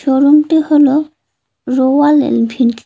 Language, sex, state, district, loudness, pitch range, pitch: Bengali, female, West Bengal, Cooch Behar, -11 LUFS, 260-300 Hz, 285 Hz